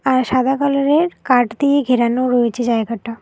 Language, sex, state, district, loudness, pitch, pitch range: Bengali, female, West Bengal, Alipurduar, -16 LUFS, 255 Hz, 235-280 Hz